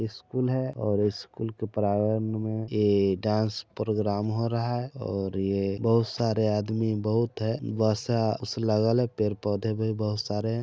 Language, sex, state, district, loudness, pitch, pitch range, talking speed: Hindi, male, Bihar, Saran, -27 LUFS, 110 Hz, 105-115 Hz, 145 wpm